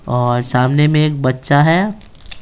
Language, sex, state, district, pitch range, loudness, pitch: Hindi, male, Bihar, Patna, 125-155 Hz, -14 LUFS, 145 Hz